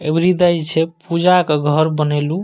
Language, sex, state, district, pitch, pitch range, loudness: Maithili, male, Bihar, Madhepura, 165 Hz, 155-175 Hz, -16 LUFS